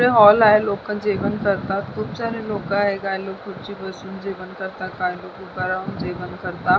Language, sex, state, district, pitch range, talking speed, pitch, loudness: Marathi, female, Maharashtra, Sindhudurg, 185-205 Hz, 185 wpm, 195 Hz, -21 LUFS